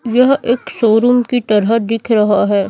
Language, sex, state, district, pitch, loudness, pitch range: Hindi, female, Chhattisgarh, Raipur, 230 Hz, -13 LUFS, 215-245 Hz